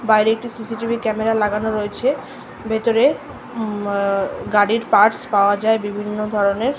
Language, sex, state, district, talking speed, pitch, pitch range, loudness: Bengali, female, West Bengal, North 24 Parganas, 125 wpm, 215 Hz, 205-225 Hz, -19 LUFS